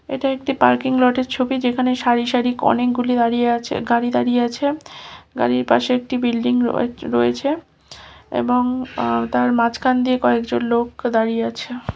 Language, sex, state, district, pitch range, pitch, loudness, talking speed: Bengali, female, West Bengal, Kolkata, 235-255 Hz, 245 Hz, -19 LUFS, 130 wpm